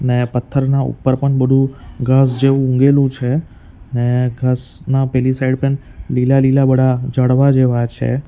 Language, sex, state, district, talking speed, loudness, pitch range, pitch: Gujarati, male, Gujarat, Valsad, 140 wpm, -15 LUFS, 125-135 Hz, 130 Hz